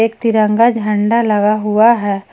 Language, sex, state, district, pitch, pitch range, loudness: Hindi, female, Jharkhand, Ranchi, 215 Hz, 210-230 Hz, -13 LUFS